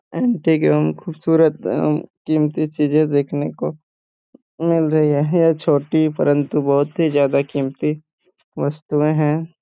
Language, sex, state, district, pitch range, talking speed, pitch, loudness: Hindi, male, Jharkhand, Jamtara, 145-160 Hz, 125 wpm, 150 Hz, -18 LUFS